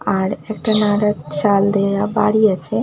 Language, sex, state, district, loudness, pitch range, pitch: Bengali, female, West Bengal, Malda, -17 LUFS, 195-215 Hz, 205 Hz